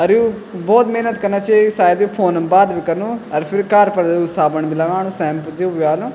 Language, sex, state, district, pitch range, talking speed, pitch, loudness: Garhwali, male, Uttarakhand, Tehri Garhwal, 165-210 Hz, 225 wpm, 185 Hz, -16 LUFS